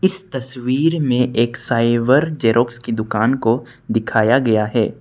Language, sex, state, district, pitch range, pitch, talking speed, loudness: Hindi, male, Arunachal Pradesh, Lower Dibang Valley, 115-135 Hz, 125 Hz, 145 wpm, -17 LUFS